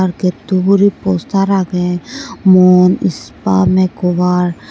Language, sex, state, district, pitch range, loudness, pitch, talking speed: Chakma, female, Tripura, West Tripura, 175-190 Hz, -13 LUFS, 180 Hz, 100 wpm